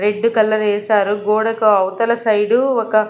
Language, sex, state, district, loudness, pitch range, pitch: Telugu, female, Andhra Pradesh, Sri Satya Sai, -16 LUFS, 210-230 Hz, 215 Hz